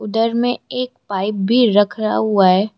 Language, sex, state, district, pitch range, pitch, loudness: Hindi, female, Arunachal Pradesh, Lower Dibang Valley, 205-240 Hz, 215 Hz, -17 LUFS